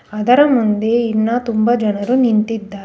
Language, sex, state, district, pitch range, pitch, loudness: Kannada, female, Karnataka, Bangalore, 215-240 Hz, 225 Hz, -15 LUFS